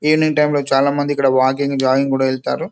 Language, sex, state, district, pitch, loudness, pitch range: Telugu, male, Telangana, Karimnagar, 140 Hz, -16 LUFS, 135-145 Hz